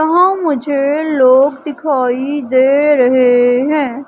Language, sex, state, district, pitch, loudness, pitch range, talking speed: Hindi, female, Madhya Pradesh, Umaria, 280 Hz, -12 LUFS, 255-295 Hz, 105 wpm